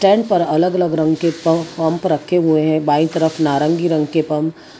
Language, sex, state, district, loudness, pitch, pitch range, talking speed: Hindi, female, Gujarat, Valsad, -16 LUFS, 160 Hz, 155-170 Hz, 215 wpm